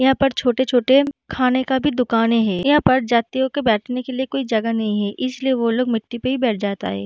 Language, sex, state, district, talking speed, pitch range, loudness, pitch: Hindi, female, Bihar, Darbhanga, 240 wpm, 230-265 Hz, -19 LUFS, 250 Hz